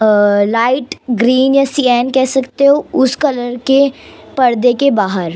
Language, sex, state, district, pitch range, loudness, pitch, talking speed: Hindi, female, Maharashtra, Mumbai Suburban, 235-275 Hz, -13 LUFS, 255 Hz, 155 wpm